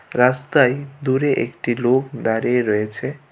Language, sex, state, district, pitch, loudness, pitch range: Bengali, male, Tripura, West Tripura, 125 Hz, -19 LUFS, 120-135 Hz